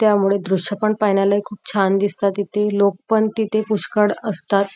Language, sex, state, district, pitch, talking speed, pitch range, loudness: Marathi, female, Maharashtra, Nagpur, 205 Hz, 165 wpm, 200-215 Hz, -19 LUFS